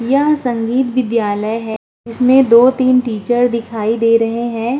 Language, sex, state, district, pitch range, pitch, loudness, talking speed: Hindi, female, Uttar Pradesh, Muzaffarnagar, 225-255 Hz, 235 Hz, -14 LUFS, 140 wpm